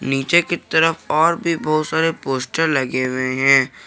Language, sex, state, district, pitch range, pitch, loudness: Hindi, male, Jharkhand, Garhwa, 135-165 Hz, 155 Hz, -18 LUFS